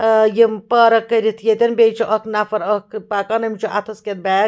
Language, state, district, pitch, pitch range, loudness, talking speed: Kashmiri, Punjab, Kapurthala, 220 Hz, 210-225 Hz, -17 LUFS, 215 wpm